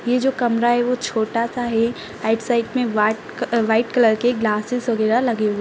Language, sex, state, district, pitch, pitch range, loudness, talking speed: Kumaoni, female, Uttarakhand, Tehri Garhwal, 235 Hz, 220-245 Hz, -20 LUFS, 205 wpm